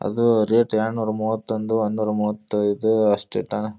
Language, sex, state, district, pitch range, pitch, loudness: Kannada, male, Karnataka, Dharwad, 105-110 Hz, 110 Hz, -22 LUFS